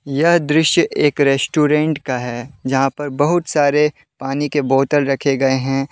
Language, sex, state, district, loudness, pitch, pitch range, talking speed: Hindi, male, Jharkhand, Deoghar, -17 LUFS, 145 Hz, 135-150 Hz, 160 wpm